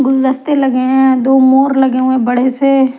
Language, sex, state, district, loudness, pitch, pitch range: Hindi, female, Punjab, Kapurthala, -11 LUFS, 265 Hz, 260-270 Hz